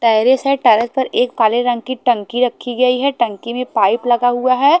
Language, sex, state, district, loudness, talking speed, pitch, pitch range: Hindi, female, Haryana, Charkhi Dadri, -15 LUFS, 225 wpm, 245 Hz, 235-255 Hz